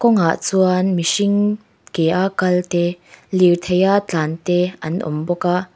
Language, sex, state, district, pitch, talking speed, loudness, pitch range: Mizo, female, Mizoram, Aizawl, 180 Hz, 145 wpm, -18 LUFS, 170-190 Hz